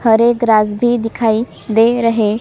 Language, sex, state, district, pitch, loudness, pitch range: Hindi, female, Chhattisgarh, Sukma, 225 Hz, -14 LUFS, 220-240 Hz